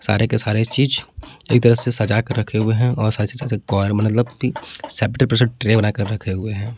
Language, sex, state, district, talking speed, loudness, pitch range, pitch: Hindi, male, Jharkhand, Palamu, 160 wpm, -19 LUFS, 110-125 Hz, 110 Hz